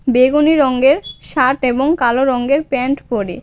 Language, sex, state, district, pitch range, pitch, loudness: Bengali, female, West Bengal, Cooch Behar, 250-280 Hz, 265 Hz, -14 LUFS